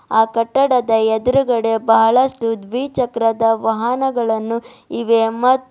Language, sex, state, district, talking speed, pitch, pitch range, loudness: Kannada, female, Karnataka, Bidar, 95 wpm, 230 Hz, 225-255 Hz, -16 LUFS